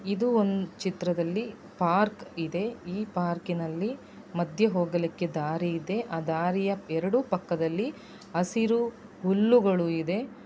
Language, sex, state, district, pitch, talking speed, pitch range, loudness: Kannada, female, Karnataka, Dakshina Kannada, 185 Hz, 115 wpm, 170-215 Hz, -28 LUFS